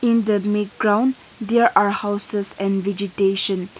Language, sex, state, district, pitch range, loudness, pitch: English, female, Nagaland, Kohima, 195-220 Hz, -20 LUFS, 205 Hz